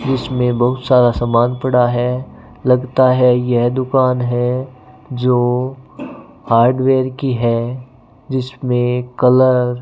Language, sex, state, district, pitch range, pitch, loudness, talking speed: Hindi, male, Rajasthan, Bikaner, 120-130 Hz, 125 Hz, -15 LUFS, 110 wpm